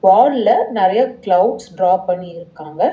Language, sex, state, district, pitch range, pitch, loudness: Tamil, female, Tamil Nadu, Chennai, 180-235 Hz, 185 Hz, -15 LUFS